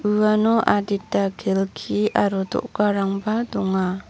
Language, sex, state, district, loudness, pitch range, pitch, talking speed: Garo, female, Meghalaya, North Garo Hills, -21 LUFS, 195-215 Hz, 205 Hz, 90 wpm